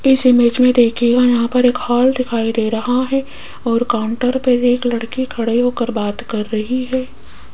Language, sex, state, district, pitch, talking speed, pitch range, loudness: Hindi, female, Rajasthan, Jaipur, 245 Hz, 190 wpm, 230-250 Hz, -16 LUFS